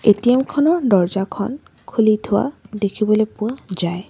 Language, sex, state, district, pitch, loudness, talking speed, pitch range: Assamese, female, Assam, Sonitpur, 215 Hz, -19 LUFS, 115 wpm, 200-245 Hz